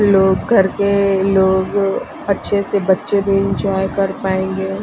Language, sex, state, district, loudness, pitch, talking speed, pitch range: Hindi, female, Bihar, Patna, -16 LUFS, 195 Hz, 110 wpm, 190-200 Hz